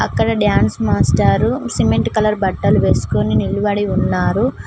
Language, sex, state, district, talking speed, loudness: Telugu, female, Telangana, Mahabubabad, 115 wpm, -16 LUFS